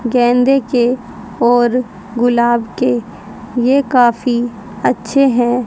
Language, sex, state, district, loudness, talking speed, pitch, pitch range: Hindi, female, Haryana, Rohtak, -14 LUFS, 95 wpm, 240 Hz, 235-250 Hz